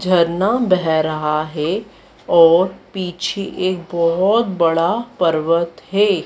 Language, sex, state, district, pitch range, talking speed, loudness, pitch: Hindi, female, Madhya Pradesh, Dhar, 165-195 Hz, 105 wpm, -17 LUFS, 175 Hz